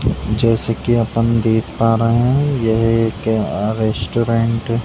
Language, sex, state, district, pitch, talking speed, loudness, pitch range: Hindi, male, Uttar Pradesh, Deoria, 115 Hz, 150 wpm, -17 LUFS, 110-115 Hz